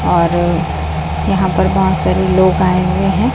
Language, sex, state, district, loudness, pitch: Hindi, female, Chhattisgarh, Raipur, -14 LUFS, 135 Hz